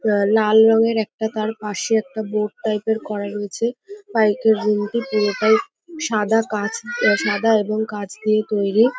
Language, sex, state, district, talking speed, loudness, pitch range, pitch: Bengali, female, West Bengal, North 24 Parganas, 160 wpm, -19 LUFS, 210-225 Hz, 215 Hz